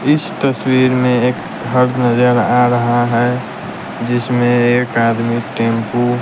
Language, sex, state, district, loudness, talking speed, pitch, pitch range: Hindi, male, Bihar, West Champaran, -14 LUFS, 135 wpm, 120 Hz, 120-125 Hz